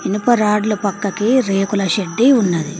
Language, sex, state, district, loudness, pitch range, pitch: Telugu, female, Telangana, Mahabubabad, -16 LUFS, 195-220 Hz, 205 Hz